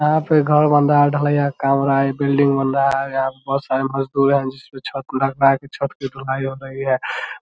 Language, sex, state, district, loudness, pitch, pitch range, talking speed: Hindi, male, Bihar, Vaishali, -18 LUFS, 135 Hz, 135-140 Hz, 275 wpm